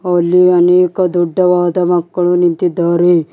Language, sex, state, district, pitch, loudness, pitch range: Kannada, male, Karnataka, Bidar, 175 Hz, -12 LUFS, 175-180 Hz